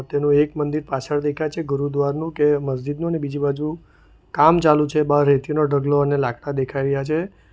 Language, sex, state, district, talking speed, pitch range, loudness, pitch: Gujarati, male, Gujarat, Valsad, 190 wpm, 140-150 Hz, -20 LUFS, 145 Hz